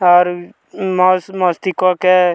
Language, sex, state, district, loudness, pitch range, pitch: Bhojpuri, male, Bihar, Muzaffarpur, -15 LUFS, 180-185 Hz, 185 Hz